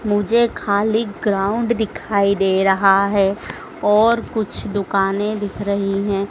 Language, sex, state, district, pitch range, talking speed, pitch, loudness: Hindi, female, Madhya Pradesh, Dhar, 195-220 Hz, 125 wpm, 205 Hz, -18 LUFS